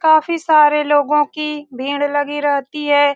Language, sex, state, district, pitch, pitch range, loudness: Hindi, female, Bihar, Saran, 295 Hz, 290-300 Hz, -16 LUFS